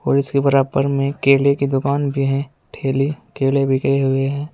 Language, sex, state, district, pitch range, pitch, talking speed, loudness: Hindi, male, Uttar Pradesh, Saharanpur, 135-140 Hz, 140 Hz, 185 wpm, -18 LUFS